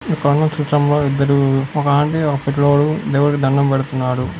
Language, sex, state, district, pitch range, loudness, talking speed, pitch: Telugu, male, Karnataka, Dharwad, 135-145 Hz, -16 LUFS, 135 wpm, 145 Hz